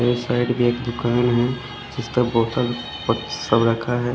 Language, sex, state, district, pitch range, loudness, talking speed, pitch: Hindi, male, Odisha, Khordha, 120-125 Hz, -21 LUFS, 175 wpm, 120 Hz